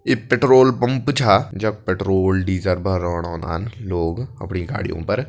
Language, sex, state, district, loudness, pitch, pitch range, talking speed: Kumaoni, male, Uttarakhand, Tehri Garhwal, -19 LUFS, 95 Hz, 90-125 Hz, 145 wpm